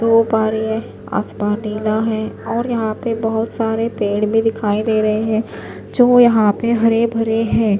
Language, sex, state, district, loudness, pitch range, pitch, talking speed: Hindi, female, Maharashtra, Gondia, -17 LUFS, 215-230 Hz, 220 Hz, 185 wpm